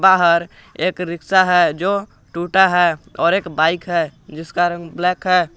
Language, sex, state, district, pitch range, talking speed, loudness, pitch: Hindi, male, Jharkhand, Garhwa, 170-185 Hz, 160 wpm, -17 LUFS, 175 Hz